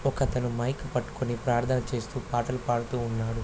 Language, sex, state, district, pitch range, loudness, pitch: Telugu, male, Andhra Pradesh, Krishna, 120-130 Hz, -29 LUFS, 120 Hz